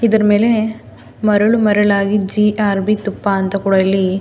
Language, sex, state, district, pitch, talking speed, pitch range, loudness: Kannada, female, Karnataka, Mysore, 205 Hz, 155 wpm, 195-215 Hz, -15 LUFS